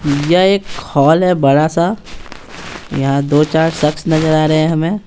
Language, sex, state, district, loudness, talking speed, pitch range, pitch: Hindi, male, Bihar, Patna, -13 LUFS, 165 wpm, 150-170 Hz, 160 Hz